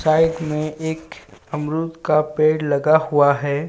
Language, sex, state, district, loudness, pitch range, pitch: Hindi, male, Jharkhand, Ranchi, -19 LUFS, 145-160 Hz, 155 Hz